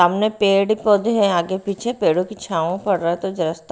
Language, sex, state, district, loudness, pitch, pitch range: Hindi, female, Bihar, Patna, -19 LUFS, 195 Hz, 175-210 Hz